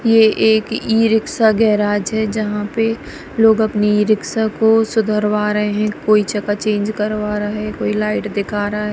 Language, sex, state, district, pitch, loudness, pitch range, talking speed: Hindi, female, Punjab, Kapurthala, 215 Hz, -16 LUFS, 210-220 Hz, 170 wpm